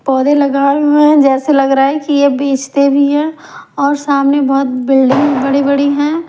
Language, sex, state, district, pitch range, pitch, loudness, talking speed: Hindi, female, Maharashtra, Mumbai Suburban, 275-290 Hz, 280 Hz, -11 LUFS, 190 wpm